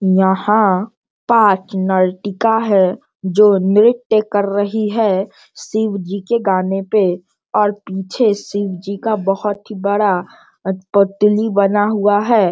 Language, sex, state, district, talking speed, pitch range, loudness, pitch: Hindi, male, Bihar, Sitamarhi, 120 wpm, 190-215 Hz, -16 LUFS, 205 Hz